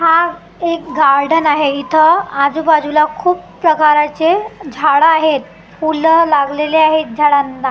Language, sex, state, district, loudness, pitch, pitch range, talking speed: Marathi, female, Maharashtra, Gondia, -13 LUFS, 310 Hz, 295-325 Hz, 115 wpm